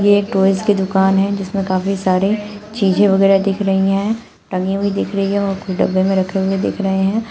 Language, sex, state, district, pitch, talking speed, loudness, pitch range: Hindi, female, Uttar Pradesh, Shamli, 195 Hz, 230 wpm, -16 LUFS, 190-200 Hz